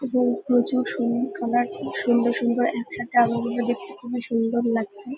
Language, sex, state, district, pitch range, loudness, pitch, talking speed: Bengali, female, West Bengal, North 24 Parganas, 235-245 Hz, -24 LUFS, 240 Hz, 140 wpm